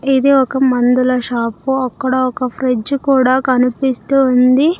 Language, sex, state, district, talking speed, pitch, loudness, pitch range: Telugu, female, Andhra Pradesh, Sri Satya Sai, 125 wpm, 260 Hz, -14 LUFS, 250-270 Hz